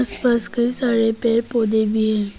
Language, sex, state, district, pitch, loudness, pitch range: Hindi, female, Arunachal Pradesh, Papum Pare, 230 Hz, -18 LUFS, 220-240 Hz